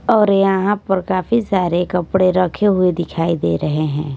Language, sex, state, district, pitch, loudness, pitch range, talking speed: Hindi, female, Punjab, Kapurthala, 185 Hz, -17 LUFS, 170-195 Hz, 170 wpm